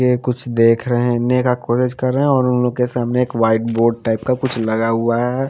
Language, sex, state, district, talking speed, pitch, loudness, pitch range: Hindi, female, Haryana, Charkhi Dadri, 275 wpm, 120 Hz, -17 LUFS, 115-125 Hz